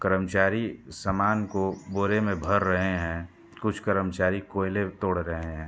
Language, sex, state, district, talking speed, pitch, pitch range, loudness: Hindi, male, Uttar Pradesh, Hamirpur, 150 wpm, 95 Hz, 90-100 Hz, -27 LUFS